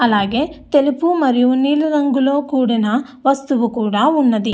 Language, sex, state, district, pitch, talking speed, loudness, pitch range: Telugu, female, Andhra Pradesh, Anantapur, 270 Hz, 120 wpm, -16 LUFS, 240-290 Hz